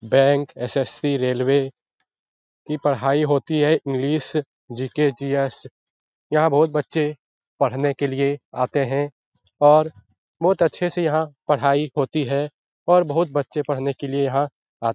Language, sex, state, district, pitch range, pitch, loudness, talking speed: Hindi, male, Bihar, Lakhisarai, 135-150 Hz, 145 Hz, -21 LUFS, 130 wpm